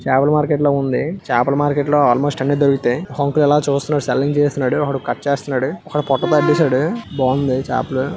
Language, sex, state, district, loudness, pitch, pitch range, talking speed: Telugu, male, Andhra Pradesh, Visakhapatnam, -17 LUFS, 140 Hz, 135-145 Hz, 175 wpm